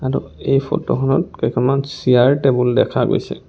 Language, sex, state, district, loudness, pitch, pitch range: Assamese, male, Assam, Kamrup Metropolitan, -17 LUFS, 135 Hz, 125-135 Hz